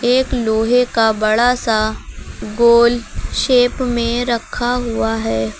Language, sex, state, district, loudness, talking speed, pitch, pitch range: Hindi, female, Uttar Pradesh, Lucknow, -16 LUFS, 120 wpm, 235 Hz, 220-245 Hz